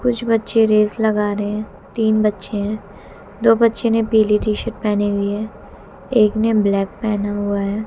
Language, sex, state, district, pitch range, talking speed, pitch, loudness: Hindi, female, Haryana, Jhajjar, 205-220 Hz, 185 wpm, 210 Hz, -18 LUFS